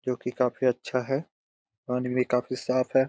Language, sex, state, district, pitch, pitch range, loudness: Hindi, male, Jharkhand, Jamtara, 125 Hz, 125-130 Hz, -27 LUFS